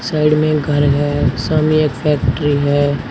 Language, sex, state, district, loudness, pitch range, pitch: Hindi, male, Uttar Pradesh, Shamli, -15 LUFS, 140-150 Hz, 145 Hz